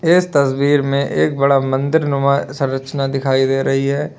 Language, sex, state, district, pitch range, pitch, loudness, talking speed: Hindi, male, Uttar Pradesh, Lalitpur, 135-145 Hz, 140 Hz, -16 LUFS, 170 wpm